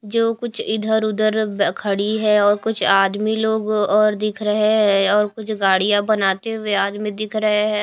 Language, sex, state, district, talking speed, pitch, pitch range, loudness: Hindi, female, Chhattisgarh, Raipur, 175 wpm, 210 Hz, 205-220 Hz, -18 LUFS